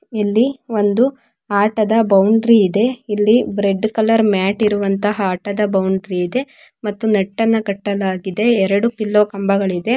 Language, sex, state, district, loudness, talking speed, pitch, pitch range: Kannada, female, Karnataka, Mysore, -16 LUFS, 120 wpm, 210 Hz, 200-225 Hz